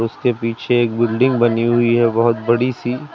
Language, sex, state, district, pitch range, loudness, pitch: Hindi, male, Uttar Pradesh, Lucknow, 115-125 Hz, -17 LUFS, 120 Hz